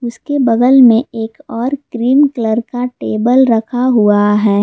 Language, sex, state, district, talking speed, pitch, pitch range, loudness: Hindi, female, Jharkhand, Garhwa, 155 wpm, 240 Hz, 225-260 Hz, -12 LUFS